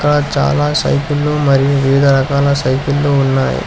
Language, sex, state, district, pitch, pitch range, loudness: Telugu, male, Telangana, Hyderabad, 140 Hz, 135-145 Hz, -13 LUFS